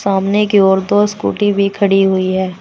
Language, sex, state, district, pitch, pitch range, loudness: Hindi, female, Uttar Pradesh, Saharanpur, 195 Hz, 190-205 Hz, -13 LUFS